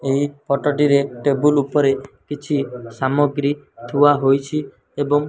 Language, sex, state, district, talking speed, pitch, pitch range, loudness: Odia, male, Odisha, Malkangiri, 125 wpm, 145 Hz, 135-145 Hz, -19 LUFS